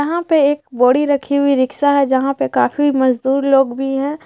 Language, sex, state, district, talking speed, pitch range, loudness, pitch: Hindi, female, Bihar, Gaya, 195 wpm, 265-290 Hz, -15 LUFS, 275 Hz